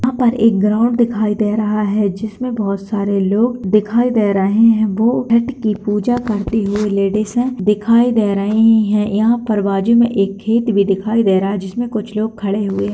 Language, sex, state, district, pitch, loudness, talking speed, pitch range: Hindi, female, Bihar, Madhepura, 215 Hz, -15 LUFS, 205 wpm, 205-230 Hz